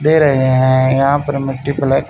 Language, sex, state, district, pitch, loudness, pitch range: Hindi, male, Haryana, Charkhi Dadri, 135 Hz, -14 LUFS, 130-140 Hz